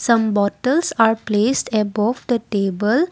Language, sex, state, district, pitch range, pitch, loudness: English, female, Assam, Kamrup Metropolitan, 210-250 Hz, 225 Hz, -19 LUFS